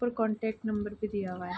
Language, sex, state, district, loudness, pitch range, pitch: Hindi, female, Bihar, Saharsa, -33 LUFS, 200-220 Hz, 215 Hz